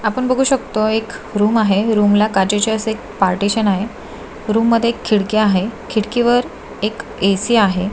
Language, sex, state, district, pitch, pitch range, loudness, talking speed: Marathi, female, Maharashtra, Solapur, 215 Hz, 205-230 Hz, -16 LUFS, 165 wpm